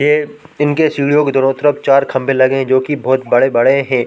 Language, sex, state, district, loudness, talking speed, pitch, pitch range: Hindi, male, Chhattisgarh, Korba, -13 LUFS, 220 wpm, 140 Hz, 130-145 Hz